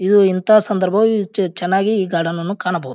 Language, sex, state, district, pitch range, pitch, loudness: Kannada, male, Karnataka, Bijapur, 180-205 Hz, 195 Hz, -16 LUFS